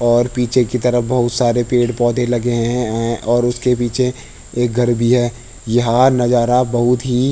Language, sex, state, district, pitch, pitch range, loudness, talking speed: Hindi, male, Uttarakhand, Tehri Garhwal, 120 Hz, 120-125 Hz, -16 LUFS, 170 wpm